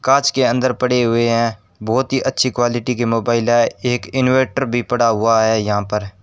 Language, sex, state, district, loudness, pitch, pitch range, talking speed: Hindi, male, Rajasthan, Bikaner, -17 LUFS, 120 Hz, 115-130 Hz, 200 wpm